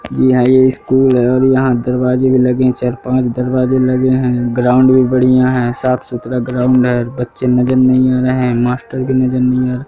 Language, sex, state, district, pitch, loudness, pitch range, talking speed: Hindi, male, Madhya Pradesh, Katni, 125 Hz, -13 LUFS, 125-130 Hz, 205 wpm